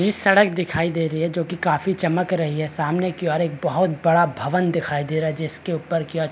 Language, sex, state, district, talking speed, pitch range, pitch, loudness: Hindi, male, Chhattisgarh, Bilaspur, 255 wpm, 155-180 Hz, 165 Hz, -21 LUFS